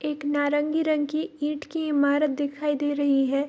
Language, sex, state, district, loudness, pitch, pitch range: Hindi, female, Bihar, Darbhanga, -25 LUFS, 290 Hz, 285-300 Hz